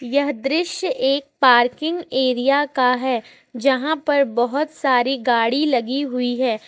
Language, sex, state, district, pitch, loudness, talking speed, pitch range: Hindi, female, Jharkhand, Ranchi, 265 Hz, -19 LUFS, 135 wpm, 250-285 Hz